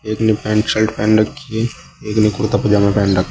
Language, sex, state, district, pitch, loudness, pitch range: Hindi, male, Uttar Pradesh, Saharanpur, 110 Hz, -16 LUFS, 105-110 Hz